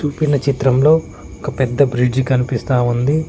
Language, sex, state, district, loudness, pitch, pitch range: Telugu, male, Telangana, Mahabubabad, -16 LUFS, 135 Hz, 125-145 Hz